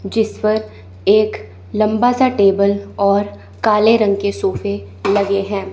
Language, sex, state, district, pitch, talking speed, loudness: Hindi, female, Chandigarh, Chandigarh, 200 Hz, 135 wpm, -16 LUFS